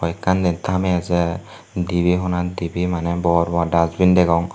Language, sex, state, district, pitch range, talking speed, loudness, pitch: Chakma, male, Tripura, Unakoti, 85-90 Hz, 160 wpm, -19 LUFS, 90 Hz